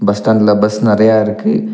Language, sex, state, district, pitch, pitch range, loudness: Tamil, male, Tamil Nadu, Nilgiris, 110 Hz, 105-110 Hz, -12 LUFS